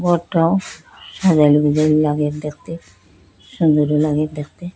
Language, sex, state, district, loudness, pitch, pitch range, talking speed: Bengali, female, Assam, Hailakandi, -17 LUFS, 150 Hz, 150-165 Hz, 100 wpm